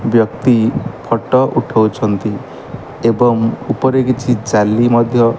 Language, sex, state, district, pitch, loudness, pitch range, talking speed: Odia, male, Odisha, Malkangiri, 115 Hz, -14 LUFS, 110-130 Hz, 100 wpm